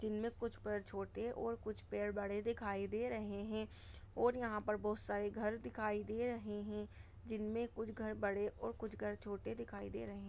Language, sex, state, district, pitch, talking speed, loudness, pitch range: Hindi, female, Chhattisgarh, Bastar, 210 Hz, 190 wpm, -43 LUFS, 205-225 Hz